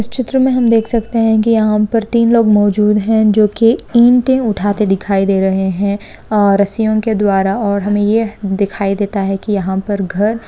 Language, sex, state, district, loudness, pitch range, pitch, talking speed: Hindi, female, West Bengal, Malda, -13 LUFS, 200-225 Hz, 210 Hz, 205 wpm